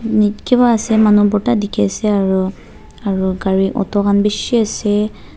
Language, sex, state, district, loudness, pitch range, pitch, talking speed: Nagamese, female, Nagaland, Dimapur, -15 LUFS, 195-220 Hz, 205 Hz, 145 wpm